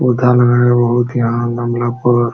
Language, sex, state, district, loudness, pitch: Hindi, male, Uttar Pradesh, Jalaun, -14 LUFS, 120 Hz